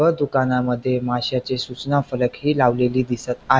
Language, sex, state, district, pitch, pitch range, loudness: Marathi, male, Maharashtra, Pune, 125 Hz, 125-135 Hz, -21 LUFS